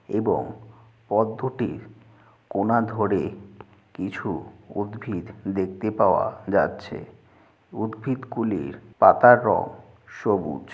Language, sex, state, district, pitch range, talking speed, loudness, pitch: Bengali, male, West Bengal, Jalpaiguri, 105-115 Hz, 80 wpm, -23 LUFS, 110 Hz